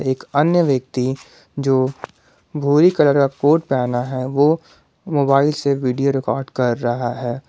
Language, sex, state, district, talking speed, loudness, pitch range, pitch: Hindi, male, Jharkhand, Garhwa, 145 wpm, -18 LUFS, 130-145 Hz, 135 Hz